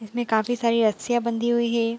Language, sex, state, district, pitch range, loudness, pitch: Hindi, female, Bihar, Bhagalpur, 225-240 Hz, -23 LUFS, 235 Hz